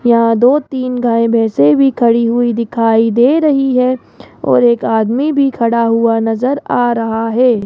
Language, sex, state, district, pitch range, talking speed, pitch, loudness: Hindi, female, Rajasthan, Jaipur, 230-255 Hz, 170 wpm, 235 Hz, -12 LUFS